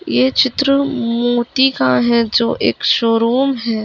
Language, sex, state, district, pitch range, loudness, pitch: Hindi, female, Chhattisgarh, Raigarh, 230-265 Hz, -15 LUFS, 240 Hz